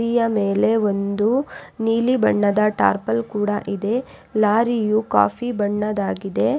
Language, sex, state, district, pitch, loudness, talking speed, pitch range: Kannada, female, Karnataka, Raichur, 210 Hz, -20 LUFS, 90 wpm, 200-230 Hz